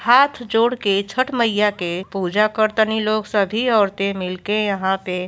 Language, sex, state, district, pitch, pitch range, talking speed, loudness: Bhojpuri, female, Uttar Pradesh, Gorakhpur, 210 Hz, 195-225 Hz, 160 wpm, -19 LUFS